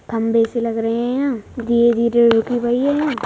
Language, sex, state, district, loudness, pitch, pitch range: Hindi, female, Uttar Pradesh, Budaun, -17 LUFS, 235 Hz, 230-245 Hz